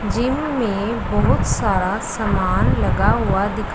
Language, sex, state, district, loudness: Hindi, female, Punjab, Pathankot, -19 LUFS